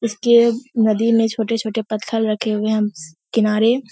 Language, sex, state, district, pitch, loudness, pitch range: Hindi, female, Bihar, Purnia, 225 Hz, -18 LUFS, 215-230 Hz